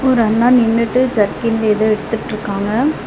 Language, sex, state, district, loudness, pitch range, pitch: Tamil, female, Tamil Nadu, Nilgiris, -15 LUFS, 215-245 Hz, 225 Hz